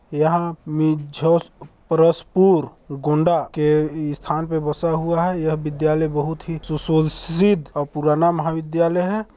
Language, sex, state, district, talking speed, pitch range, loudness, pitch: Hindi, male, Chhattisgarh, Balrampur, 120 wpm, 150-170 Hz, -20 LUFS, 160 Hz